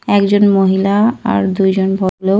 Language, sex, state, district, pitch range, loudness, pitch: Bengali, female, Jharkhand, Jamtara, 190-205 Hz, -13 LUFS, 195 Hz